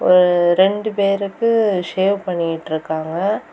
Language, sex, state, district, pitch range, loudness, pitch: Tamil, female, Tamil Nadu, Kanyakumari, 175-200 Hz, -17 LUFS, 185 Hz